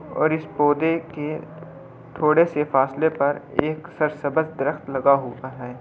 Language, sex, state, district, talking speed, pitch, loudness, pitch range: Hindi, male, Delhi, New Delhi, 145 wpm, 150 Hz, -22 LUFS, 135-160 Hz